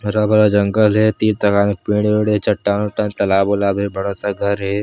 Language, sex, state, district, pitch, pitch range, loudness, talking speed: Chhattisgarhi, male, Chhattisgarh, Sarguja, 105 Hz, 100-105 Hz, -16 LUFS, 225 wpm